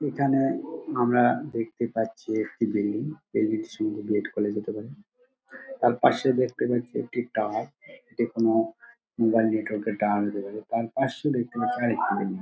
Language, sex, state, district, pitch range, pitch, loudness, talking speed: Bengali, male, West Bengal, Dakshin Dinajpur, 110-145 Hz, 120 Hz, -26 LUFS, 180 wpm